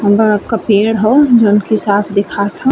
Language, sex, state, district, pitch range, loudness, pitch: Bhojpuri, female, Uttar Pradesh, Ghazipur, 205-225 Hz, -12 LUFS, 215 Hz